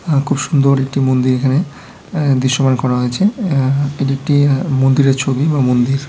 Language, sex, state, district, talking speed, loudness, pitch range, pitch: Bengali, male, West Bengal, Malda, 145 wpm, -15 LUFS, 130-145 Hz, 135 Hz